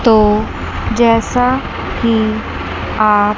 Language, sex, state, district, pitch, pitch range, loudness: Hindi, female, Chandigarh, Chandigarh, 225 Hz, 215-235 Hz, -15 LUFS